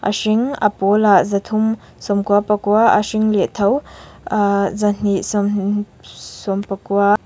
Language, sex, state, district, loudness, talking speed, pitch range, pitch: Mizo, female, Mizoram, Aizawl, -17 LUFS, 125 wpm, 200-215 Hz, 205 Hz